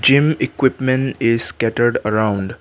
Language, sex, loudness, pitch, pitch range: English, male, -17 LUFS, 120 Hz, 110-130 Hz